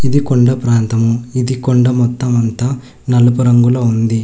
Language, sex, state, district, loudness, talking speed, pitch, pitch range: Telugu, male, Telangana, Hyderabad, -13 LUFS, 140 wpm, 125 Hz, 120-125 Hz